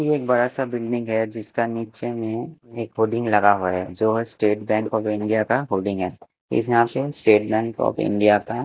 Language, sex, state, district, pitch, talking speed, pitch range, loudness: Hindi, male, Bihar, West Champaran, 110 Hz, 210 wpm, 105-115 Hz, -22 LUFS